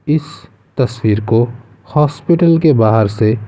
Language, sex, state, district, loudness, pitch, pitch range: Hindi, male, Uttar Pradesh, Muzaffarnagar, -14 LUFS, 120 Hz, 110-150 Hz